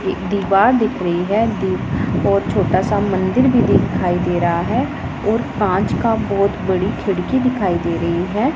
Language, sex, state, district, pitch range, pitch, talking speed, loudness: Hindi, female, Punjab, Pathankot, 175-220 Hz, 195 Hz, 175 wpm, -17 LUFS